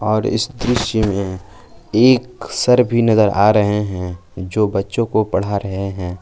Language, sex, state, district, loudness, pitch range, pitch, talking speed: Hindi, male, Jharkhand, Palamu, -17 LUFS, 95-115 Hz, 105 Hz, 165 wpm